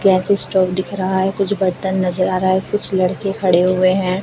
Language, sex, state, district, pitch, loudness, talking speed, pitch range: Hindi, female, Chhattisgarh, Raipur, 190 Hz, -16 LUFS, 225 wpm, 185-195 Hz